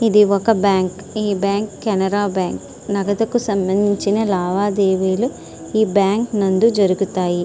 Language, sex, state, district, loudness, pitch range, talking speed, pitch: Telugu, female, Andhra Pradesh, Srikakulam, -18 LUFS, 190-210 Hz, 120 wpm, 200 Hz